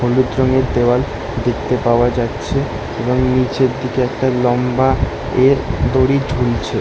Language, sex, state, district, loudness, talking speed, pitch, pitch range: Bengali, male, West Bengal, Kolkata, -16 LUFS, 130 wpm, 125 Hz, 120-130 Hz